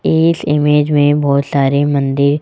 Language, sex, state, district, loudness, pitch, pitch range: Hindi, male, Rajasthan, Jaipur, -13 LUFS, 145 Hz, 140-150 Hz